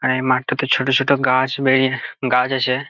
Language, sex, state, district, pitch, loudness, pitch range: Bengali, male, West Bengal, Jalpaiguri, 130 Hz, -18 LUFS, 130-135 Hz